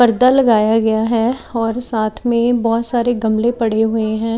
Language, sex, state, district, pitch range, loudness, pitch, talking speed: Hindi, female, Maharashtra, Gondia, 220-240 Hz, -16 LUFS, 230 Hz, 180 wpm